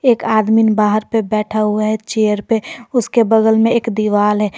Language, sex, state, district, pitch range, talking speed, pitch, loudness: Hindi, female, Jharkhand, Garhwa, 210-225 Hz, 195 wpm, 220 Hz, -15 LUFS